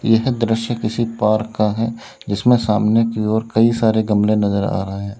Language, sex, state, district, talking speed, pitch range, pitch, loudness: Hindi, male, Uttar Pradesh, Lalitpur, 195 wpm, 105-115 Hz, 110 Hz, -18 LUFS